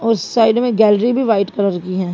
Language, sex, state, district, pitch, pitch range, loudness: Hindi, female, Haryana, Jhajjar, 215 Hz, 195-230 Hz, -15 LUFS